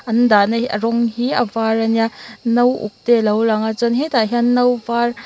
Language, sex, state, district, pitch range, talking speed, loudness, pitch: Mizo, female, Mizoram, Aizawl, 225-240 Hz, 250 wpm, -17 LUFS, 235 Hz